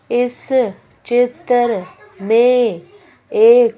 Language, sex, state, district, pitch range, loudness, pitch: Hindi, female, Madhya Pradesh, Bhopal, 235-345 Hz, -15 LUFS, 245 Hz